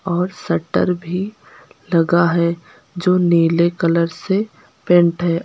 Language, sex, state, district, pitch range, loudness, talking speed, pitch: Hindi, female, Uttar Pradesh, Lucknow, 170-180 Hz, -17 LUFS, 120 wpm, 170 Hz